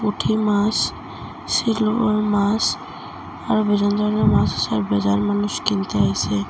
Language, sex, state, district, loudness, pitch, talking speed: Bengali, female, Assam, Hailakandi, -20 LUFS, 205 Hz, 130 wpm